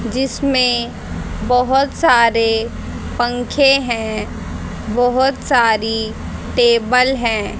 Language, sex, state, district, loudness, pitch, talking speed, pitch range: Hindi, female, Haryana, Rohtak, -16 LUFS, 245 Hz, 70 wpm, 230-260 Hz